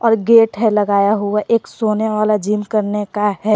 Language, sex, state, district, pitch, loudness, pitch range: Hindi, female, Jharkhand, Garhwa, 215 Hz, -16 LUFS, 210-220 Hz